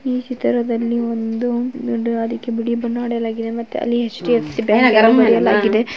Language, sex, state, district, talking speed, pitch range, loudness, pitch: Kannada, female, Karnataka, Mysore, 150 wpm, 225-240 Hz, -17 LUFS, 235 Hz